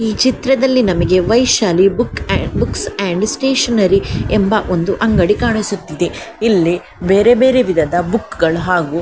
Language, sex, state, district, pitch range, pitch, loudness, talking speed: Kannada, female, Karnataka, Dakshina Kannada, 180-235 Hz, 200 Hz, -14 LUFS, 135 wpm